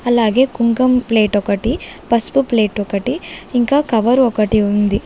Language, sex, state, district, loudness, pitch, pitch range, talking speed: Telugu, female, Andhra Pradesh, Sri Satya Sai, -15 LUFS, 235 Hz, 210-250 Hz, 130 wpm